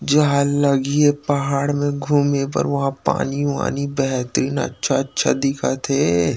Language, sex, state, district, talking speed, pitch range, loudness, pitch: Chhattisgarhi, male, Chhattisgarh, Rajnandgaon, 140 wpm, 135-145 Hz, -19 LUFS, 140 Hz